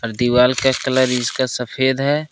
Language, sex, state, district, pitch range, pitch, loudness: Hindi, male, Jharkhand, Ranchi, 125-130 Hz, 130 Hz, -17 LUFS